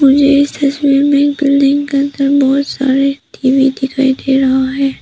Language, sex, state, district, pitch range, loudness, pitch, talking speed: Hindi, female, Arunachal Pradesh, Papum Pare, 270-280 Hz, -12 LUFS, 275 Hz, 180 wpm